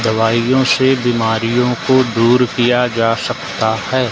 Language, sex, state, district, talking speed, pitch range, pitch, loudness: Hindi, male, Madhya Pradesh, Umaria, 130 wpm, 115-125 Hz, 120 Hz, -14 LUFS